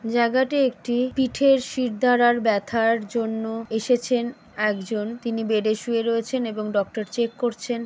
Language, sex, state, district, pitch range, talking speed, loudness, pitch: Bengali, female, West Bengal, Jalpaiguri, 220-245 Hz, 120 wpm, -23 LUFS, 230 Hz